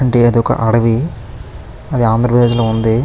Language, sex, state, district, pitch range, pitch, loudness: Telugu, male, Andhra Pradesh, Chittoor, 115-120 Hz, 115 Hz, -13 LUFS